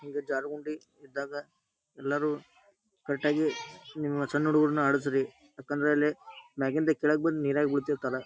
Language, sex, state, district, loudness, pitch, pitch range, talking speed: Kannada, male, Karnataka, Dharwad, -29 LUFS, 145 Hz, 140-150 Hz, 115 wpm